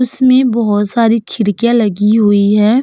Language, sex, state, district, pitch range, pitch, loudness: Hindi, female, Uttar Pradesh, Jalaun, 205-240 Hz, 225 Hz, -12 LUFS